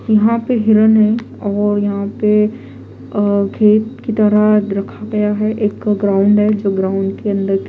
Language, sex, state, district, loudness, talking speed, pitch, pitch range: Hindi, female, Delhi, New Delhi, -15 LUFS, 180 wpm, 210 Hz, 200-215 Hz